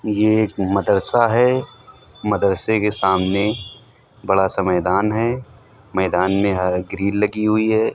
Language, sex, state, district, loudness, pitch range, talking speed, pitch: Hindi, male, Uttar Pradesh, Hamirpur, -18 LUFS, 95-110 Hz, 130 wpm, 105 Hz